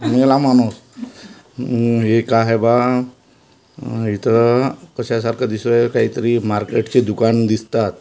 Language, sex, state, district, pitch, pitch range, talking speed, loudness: Marathi, male, Maharashtra, Washim, 120 Hz, 115-125 Hz, 95 wpm, -16 LUFS